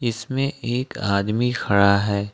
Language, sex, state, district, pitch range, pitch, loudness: Hindi, male, Jharkhand, Ranchi, 100-125 Hz, 110 Hz, -21 LUFS